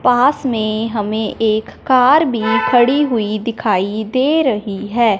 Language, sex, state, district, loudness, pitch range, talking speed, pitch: Hindi, female, Punjab, Fazilka, -15 LUFS, 215-255 Hz, 140 wpm, 230 Hz